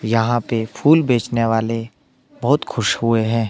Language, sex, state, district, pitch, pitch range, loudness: Hindi, male, Himachal Pradesh, Shimla, 115 Hz, 115-120 Hz, -18 LUFS